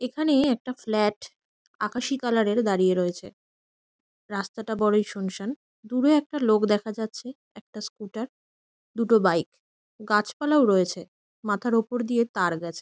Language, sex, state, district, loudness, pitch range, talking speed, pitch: Bengali, female, West Bengal, Kolkata, -25 LUFS, 195-245 Hz, 125 wpm, 215 Hz